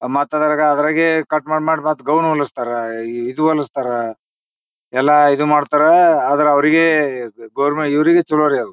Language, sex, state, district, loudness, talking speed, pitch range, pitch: Kannada, male, Karnataka, Bijapur, -15 LUFS, 135 wpm, 140-155 Hz, 150 Hz